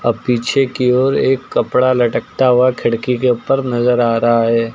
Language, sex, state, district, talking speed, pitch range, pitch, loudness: Hindi, male, Uttar Pradesh, Lucknow, 190 wpm, 120-130 Hz, 125 Hz, -15 LUFS